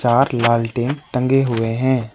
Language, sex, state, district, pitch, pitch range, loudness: Hindi, male, West Bengal, Alipurduar, 120 Hz, 115-130 Hz, -18 LUFS